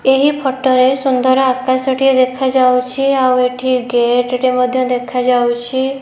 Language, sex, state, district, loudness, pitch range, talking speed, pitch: Odia, female, Odisha, Khordha, -14 LUFS, 250-265 Hz, 130 wpm, 255 Hz